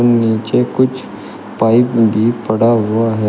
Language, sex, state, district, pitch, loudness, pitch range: Hindi, male, Uttar Pradesh, Shamli, 115 Hz, -14 LUFS, 110-120 Hz